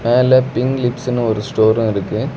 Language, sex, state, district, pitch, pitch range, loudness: Tamil, male, Tamil Nadu, Kanyakumari, 120 Hz, 110-130 Hz, -16 LUFS